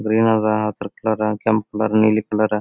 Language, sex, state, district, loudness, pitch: Kannada, male, Karnataka, Gulbarga, -19 LUFS, 110 Hz